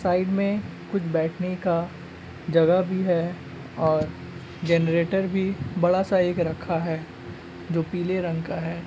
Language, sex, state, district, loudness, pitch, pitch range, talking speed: Magahi, male, Bihar, Gaya, -25 LUFS, 170 Hz, 160-185 Hz, 140 wpm